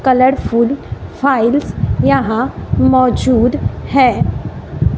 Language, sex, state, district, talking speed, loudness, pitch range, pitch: Hindi, female, Bihar, West Champaran, 60 wpm, -14 LUFS, 245-265 Hz, 255 Hz